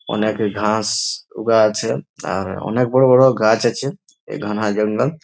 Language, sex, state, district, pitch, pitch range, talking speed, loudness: Bengali, male, West Bengal, Jalpaiguri, 110 Hz, 105-125 Hz, 160 wpm, -18 LUFS